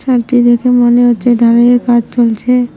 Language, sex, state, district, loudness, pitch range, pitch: Bengali, female, West Bengal, Cooch Behar, -10 LUFS, 235-245 Hz, 240 Hz